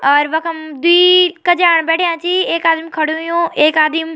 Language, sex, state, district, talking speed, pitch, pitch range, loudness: Garhwali, female, Uttarakhand, Tehri Garhwal, 175 wpm, 330 Hz, 315-345 Hz, -13 LUFS